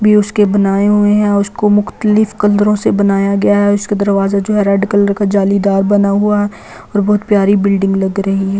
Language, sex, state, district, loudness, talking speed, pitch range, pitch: Hindi, female, Delhi, New Delhi, -12 LUFS, 200 wpm, 200-205 Hz, 205 Hz